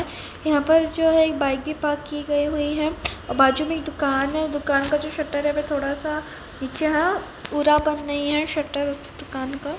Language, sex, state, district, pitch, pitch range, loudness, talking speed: Hindi, female, Rajasthan, Churu, 295 Hz, 290-310 Hz, -23 LUFS, 225 wpm